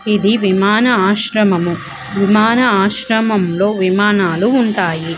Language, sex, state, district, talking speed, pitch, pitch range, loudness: Telugu, female, Andhra Pradesh, Visakhapatnam, 105 wpm, 205 Hz, 190-220 Hz, -13 LUFS